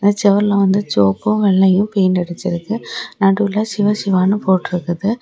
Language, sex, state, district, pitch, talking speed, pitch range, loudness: Tamil, female, Tamil Nadu, Kanyakumari, 200 Hz, 115 wpm, 185-205 Hz, -16 LUFS